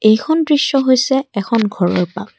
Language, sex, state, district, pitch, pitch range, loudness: Assamese, female, Assam, Kamrup Metropolitan, 230 Hz, 200-275 Hz, -15 LUFS